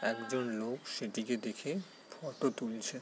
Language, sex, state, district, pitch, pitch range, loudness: Bengali, male, West Bengal, Jalpaiguri, 120 Hz, 115-135 Hz, -38 LUFS